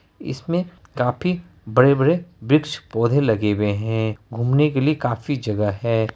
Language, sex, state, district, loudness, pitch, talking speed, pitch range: Hindi, male, Bihar, Araria, -21 LUFS, 120 Hz, 135 wpm, 110-145 Hz